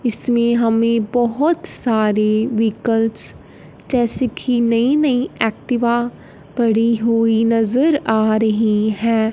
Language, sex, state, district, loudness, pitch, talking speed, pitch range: Hindi, female, Punjab, Fazilka, -17 LUFS, 230 Hz, 105 wpm, 225-245 Hz